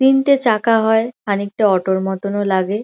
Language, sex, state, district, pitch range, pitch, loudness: Bengali, female, West Bengal, Kolkata, 200-225 Hz, 210 Hz, -16 LUFS